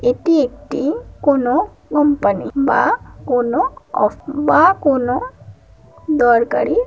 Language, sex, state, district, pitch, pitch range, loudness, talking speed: Bengali, female, West Bengal, Kolkata, 280 Hz, 245-320 Hz, -16 LUFS, 85 wpm